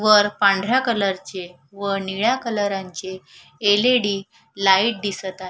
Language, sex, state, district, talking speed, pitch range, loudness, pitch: Marathi, female, Maharashtra, Solapur, 110 wpm, 190-210 Hz, -20 LUFS, 200 Hz